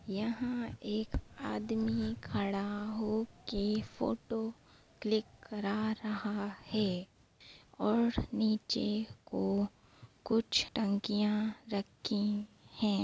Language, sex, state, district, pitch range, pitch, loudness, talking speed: Hindi, female, Bihar, Begusarai, 205-225 Hz, 215 Hz, -35 LUFS, 80 wpm